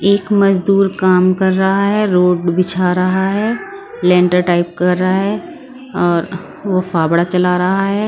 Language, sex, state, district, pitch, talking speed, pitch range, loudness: Hindi, female, Punjab, Pathankot, 185 Hz, 155 wpm, 180-200 Hz, -14 LUFS